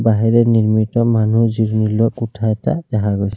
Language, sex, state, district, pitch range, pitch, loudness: Assamese, male, Assam, Kamrup Metropolitan, 110-115 Hz, 110 Hz, -16 LUFS